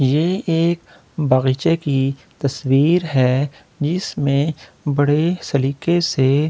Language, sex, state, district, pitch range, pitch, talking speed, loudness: Hindi, male, Delhi, New Delhi, 135-165 Hz, 145 Hz, 100 wpm, -19 LUFS